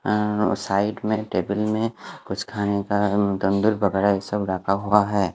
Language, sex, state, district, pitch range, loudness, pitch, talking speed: Hindi, male, Punjab, Fazilka, 100-105 Hz, -23 LUFS, 100 Hz, 145 wpm